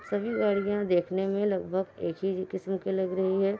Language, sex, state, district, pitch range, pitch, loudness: Hindi, female, Bihar, Kishanganj, 190-200 Hz, 190 Hz, -29 LUFS